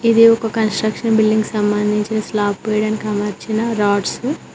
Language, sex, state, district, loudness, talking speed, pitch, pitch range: Telugu, female, Telangana, Mahabubabad, -17 LUFS, 130 wpm, 215 Hz, 210-225 Hz